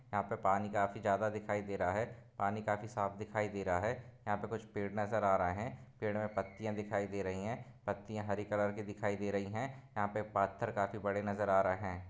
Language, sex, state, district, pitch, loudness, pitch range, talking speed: Hindi, male, Maharashtra, Sindhudurg, 105 Hz, -37 LUFS, 100-110 Hz, 240 wpm